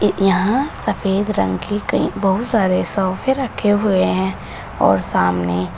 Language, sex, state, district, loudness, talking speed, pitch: Hindi, female, Uttar Pradesh, Shamli, -18 LUFS, 135 wpm, 195 Hz